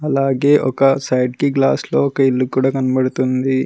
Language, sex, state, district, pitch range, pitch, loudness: Telugu, male, Telangana, Mahabubabad, 130-135 Hz, 130 Hz, -16 LUFS